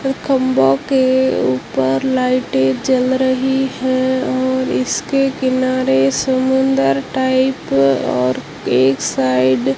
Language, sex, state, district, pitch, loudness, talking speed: Hindi, female, Rajasthan, Jaisalmer, 255 Hz, -16 LUFS, 100 wpm